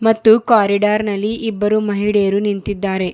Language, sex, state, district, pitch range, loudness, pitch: Kannada, male, Karnataka, Bidar, 200-220 Hz, -16 LUFS, 210 Hz